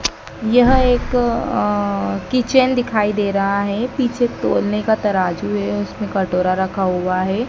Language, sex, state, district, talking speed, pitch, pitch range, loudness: Hindi, female, Madhya Pradesh, Dhar, 145 wpm, 205 Hz, 185-240 Hz, -18 LUFS